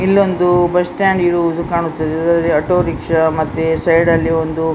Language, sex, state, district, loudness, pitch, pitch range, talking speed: Kannada, female, Karnataka, Dakshina Kannada, -15 LUFS, 170 Hz, 160-175 Hz, 165 wpm